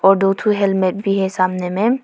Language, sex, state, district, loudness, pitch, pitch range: Hindi, female, Arunachal Pradesh, Papum Pare, -17 LUFS, 195 Hz, 185-200 Hz